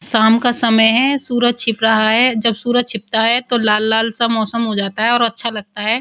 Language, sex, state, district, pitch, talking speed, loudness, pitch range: Hindi, female, Uttar Pradesh, Muzaffarnagar, 230 Hz, 230 wpm, -14 LUFS, 220-240 Hz